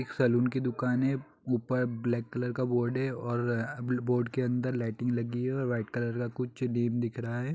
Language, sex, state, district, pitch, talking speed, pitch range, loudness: Hindi, male, Jharkhand, Jamtara, 125 Hz, 220 wpm, 120-125 Hz, -31 LUFS